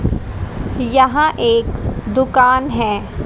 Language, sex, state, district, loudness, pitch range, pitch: Hindi, female, Haryana, Rohtak, -16 LUFS, 255-305 Hz, 260 Hz